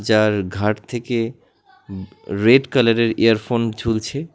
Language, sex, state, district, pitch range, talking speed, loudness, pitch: Bengali, male, West Bengal, Alipurduar, 110-125 Hz, 95 wpm, -19 LUFS, 115 Hz